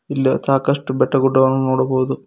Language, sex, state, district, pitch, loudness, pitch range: Kannada, male, Karnataka, Koppal, 135 Hz, -17 LUFS, 130-135 Hz